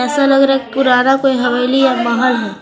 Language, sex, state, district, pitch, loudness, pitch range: Hindi, female, Jharkhand, Garhwa, 255 Hz, -13 LUFS, 245-270 Hz